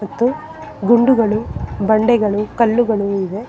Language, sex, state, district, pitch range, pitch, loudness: Kannada, female, Karnataka, Bangalore, 205-240 Hz, 220 Hz, -16 LUFS